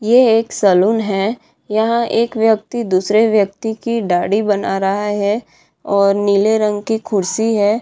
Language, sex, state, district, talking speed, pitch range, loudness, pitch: Hindi, female, Bihar, Madhepura, 155 wpm, 200-225 Hz, -16 LUFS, 215 Hz